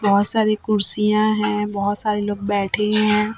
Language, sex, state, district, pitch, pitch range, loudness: Hindi, female, Chhattisgarh, Raipur, 210 Hz, 205-215 Hz, -18 LUFS